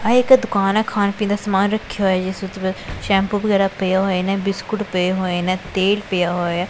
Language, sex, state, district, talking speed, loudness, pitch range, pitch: Punjabi, female, Punjab, Pathankot, 215 wpm, -19 LUFS, 185-205 Hz, 195 Hz